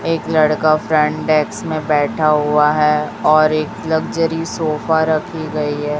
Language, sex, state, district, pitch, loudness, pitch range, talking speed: Hindi, male, Chhattisgarh, Raipur, 155 Hz, -16 LUFS, 150-160 Hz, 150 wpm